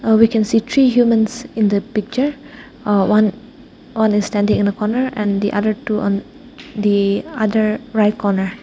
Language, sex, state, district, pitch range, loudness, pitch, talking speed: English, female, Nagaland, Dimapur, 205-245 Hz, -17 LUFS, 215 Hz, 180 wpm